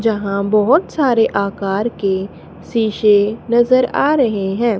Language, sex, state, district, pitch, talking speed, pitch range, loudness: Hindi, female, Haryana, Charkhi Dadri, 215 Hz, 125 wpm, 200-240 Hz, -16 LUFS